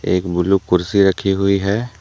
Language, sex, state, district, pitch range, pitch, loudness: Hindi, male, Jharkhand, Deoghar, 90-100 Hz, 95 Hz, -17 LUFS